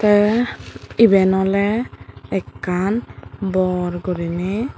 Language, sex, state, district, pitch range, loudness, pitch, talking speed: Chakma, female, Tripura, Dhalai, 180-215 Hz, -19 LUFS, 195 Hz, 75 wpm